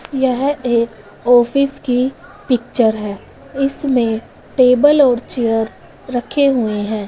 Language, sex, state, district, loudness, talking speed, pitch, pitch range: Hindi, female, Punjab, Fazilka, -16 LUFS, 110 wpm, 245 Hz, 225-275 Hz